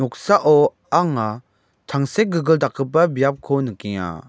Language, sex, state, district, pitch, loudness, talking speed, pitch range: Garo, male, Meghalaya, West Garo Hills, 140 Hz, -19 LUFS, 85 wpm, 120-160 Hz